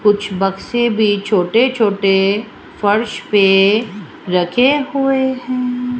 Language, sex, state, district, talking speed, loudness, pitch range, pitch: Hindi, female, Rajasthan, Jaipur, 100 wpm, -15 LUFS, 195-250 Hz, 210 Hz